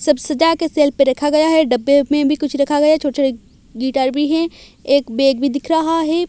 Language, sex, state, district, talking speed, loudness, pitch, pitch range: Hindi, female, Odisha, Malkangiri, 240 wpm, -16 LUFS, 290 Hz, 275-315 Hz